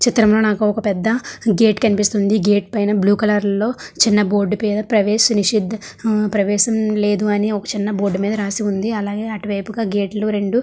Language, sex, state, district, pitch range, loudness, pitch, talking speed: Telugu, female, Andhra Pradesh, Srikakulam, 205-215 Hz, -17 LUFS, 210 Hz, 175 wpm